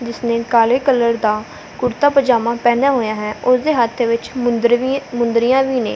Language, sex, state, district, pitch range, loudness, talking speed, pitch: Punjabi, female, Punjab, Fazilka, 230-255 Hz, -16 LUFS, 170 wpm, 240 Hz